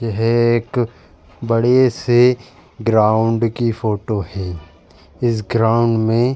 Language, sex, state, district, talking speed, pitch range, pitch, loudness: Hindi, male, Uttar Pradesh, Jalaun, 115 wpm, 105-120 Hz, 115 Hz, -17 LUFS